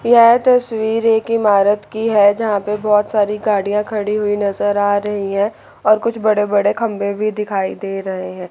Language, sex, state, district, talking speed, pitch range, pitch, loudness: Hindi, female, Chandigarh, Chandigarh, 190 wpm, 205-220 Hz, 210 Hz, -16 LUFS